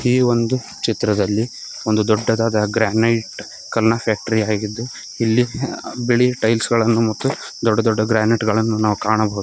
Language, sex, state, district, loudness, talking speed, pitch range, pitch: Kannada, male, Karnataka, Koppal, -18 LUFS, 135 wpm, 110-115 Hz, 115 Hz